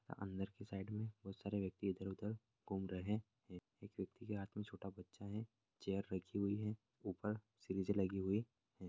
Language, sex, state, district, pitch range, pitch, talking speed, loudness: Hindi, male, Bihar, Bhagalpur, 95-110 Hz, 100 Hz, 190 wpm, -46 LUFS